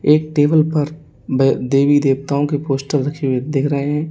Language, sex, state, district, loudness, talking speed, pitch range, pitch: Hindi, male, Uttar Pradesh, Lalitpur, -17 LUFS, 175 wpm, 135-150 Hz, 145 Hz